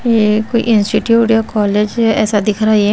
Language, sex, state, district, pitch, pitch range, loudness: Hindi, female, Chhattisgarh, Raipur, 215 Hz, 210-225 Hz, -13 LUFS